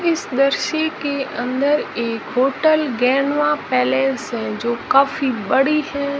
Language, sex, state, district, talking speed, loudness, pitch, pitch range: Hindi, male, Rajasthan, Jaisalmer, 125 wpm, -19 LUFS, 270 Hz, 235-285 Hz